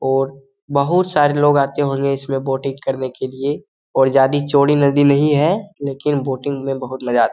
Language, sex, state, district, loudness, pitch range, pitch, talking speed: Hindi, male, Bihar, Lakhisarai, -17 LUFS, 135-145 Hz, 140 Hz, 190 wpm